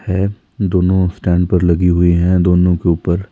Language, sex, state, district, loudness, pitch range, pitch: Hindi, male, Himachal Pradesh, Shimla, -14 LUFS, 90-95 Hz, 90 Hz